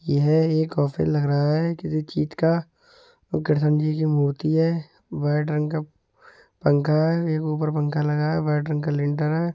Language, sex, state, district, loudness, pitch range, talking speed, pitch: Hindi, male, Uttar Pradesh, Etah, -23 LUFS, 150-160 Hz, 190 wpm, 155 Hz